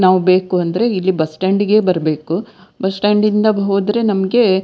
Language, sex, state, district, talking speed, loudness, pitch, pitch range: Kannada, female, Karnataka, Dakshina Kannada, 170 wpm, -15 LUFS, 190 Hz, 185-210 Hz